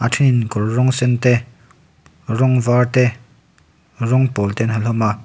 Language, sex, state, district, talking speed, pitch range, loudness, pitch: Mizo, male, Mizoram, Aizawl, 170 wpm, 115-125 Hz, -17 LUFS, 120 Hz